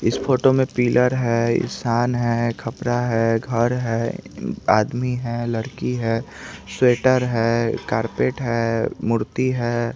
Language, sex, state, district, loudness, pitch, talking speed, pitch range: Hindi, male, Chandigarh, Chandigarh, -21 LUFS, 120 Hz, 125 wpm, 115-125 Hz